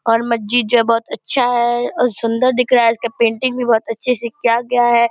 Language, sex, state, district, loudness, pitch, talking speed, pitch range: Hindi, female, Bihar, Purnia, -16 LUFS, 235 Hz, 235 wpm, 230-245 Hz